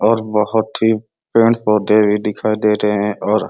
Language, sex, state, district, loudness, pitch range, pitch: Hindi, male, Uttar Pradesh, Ghazipur, -16 LUFS, 105-110 Hz, 105 Hz